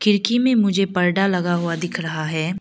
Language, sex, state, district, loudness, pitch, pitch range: Hindi, female, Arunachal Pradesh, Lower Dibang Valley, -20 LUFS, 180 Hz, 170-195 Hz